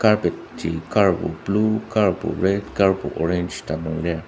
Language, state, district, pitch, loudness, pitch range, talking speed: Ao, Nagaland, Dimapur, 95 Hz, -22 LUFS, 80-105 Hz, 155 wpm